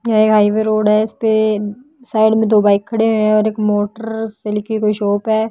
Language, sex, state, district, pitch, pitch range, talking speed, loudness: Hindi, female, Haryana, Jhajjar, 215 Hz, 210-220 Hz, 230 wpm, -15 LUFS